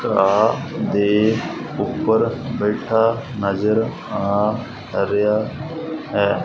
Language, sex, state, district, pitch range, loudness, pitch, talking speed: Punjabi, male, Punjab, Fazilka, 105-115 Hz, -20 LUFS, 110 Hz, 65 wpm